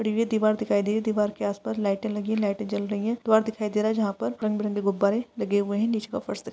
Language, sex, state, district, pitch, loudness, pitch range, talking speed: Hindi, female, Uttar Pradesh, Jalaun, 210 Hz, -26 LUFS, 205-220 Hz, 285 wpm